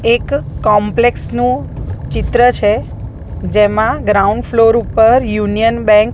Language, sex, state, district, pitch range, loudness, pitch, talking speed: Gujarati, female, Gujarat, Gandhinagar, 205-235 Hz, -13 LUFS, 215 Hz, 115 wpm